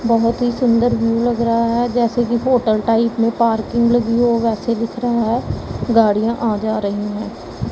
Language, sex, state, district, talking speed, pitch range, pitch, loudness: Hindi, female, Punjab, Pathankot, 185 wpm, 225-240 Hz, 230 Hz, -17 LUFS